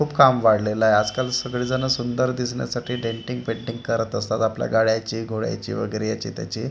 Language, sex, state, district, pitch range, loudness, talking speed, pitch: Marathi, male, Maharashtra, Gondia, 110-125 Hz, -23 LUFS, 170 wpm, 115 Hz